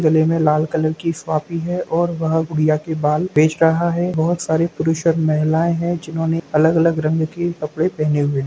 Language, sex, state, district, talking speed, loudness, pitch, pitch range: Hindi, male, Bihar, Sitamarhi, 205 wpm, -18 LUFS, 160 Hz, 155-170 Hz